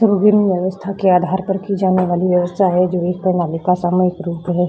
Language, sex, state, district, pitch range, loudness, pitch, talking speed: Hindi, female, Bihar, Vaishali, 180-190 Hz, -16 LUFS, 185 Hz, 240 wpm